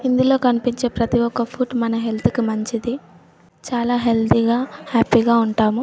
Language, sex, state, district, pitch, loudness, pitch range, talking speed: Telugu, female, Telangana, Nalgonda, 235 Hz, -19 LUFS, 230-245 Hz, 165 wpm